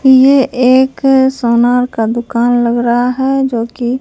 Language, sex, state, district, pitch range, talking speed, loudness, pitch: Hindi, female, Bihar, Katihar, 235-265 Hz, 150 wpm, -11 LUFS, 250 Hz